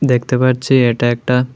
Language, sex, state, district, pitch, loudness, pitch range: Bengali, male, Tripura, West Tripura, 125 Hz, -14 LUFS, 120-130 Hz